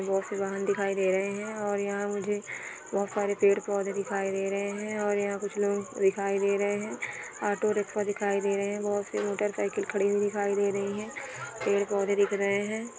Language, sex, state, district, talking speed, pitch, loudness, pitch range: Hindi, female, Bihar, Jahanabad, 200 wpm, 200 Hz, -29 LUFS, 200-205 Hz